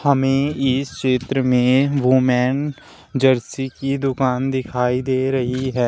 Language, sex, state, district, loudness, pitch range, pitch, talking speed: Hindi, male, Uttar Pradesh, Shamli, -19 LUFS, 125-135 Hz, 130 Hz, 120 wpm